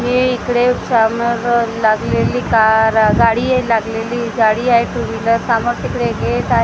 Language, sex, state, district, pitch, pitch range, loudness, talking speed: Marathi, female, Maharashtra, Gondia, 230 Hz, 225-240 Hz, -15 LUFS, 165 wpm